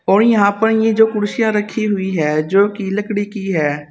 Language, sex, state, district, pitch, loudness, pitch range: Hindi, female, Uttar Pradesh, Saharanpur, 205 Hz, -16 LUFS, 190-220 Hz